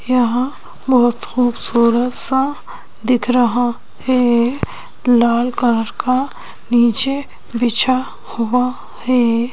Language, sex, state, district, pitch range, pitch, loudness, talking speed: Hindi, female, Madhya Pradesh, Bhopal, 235-255 Hz, 245 Hz, -16 LUFS, 90 wpm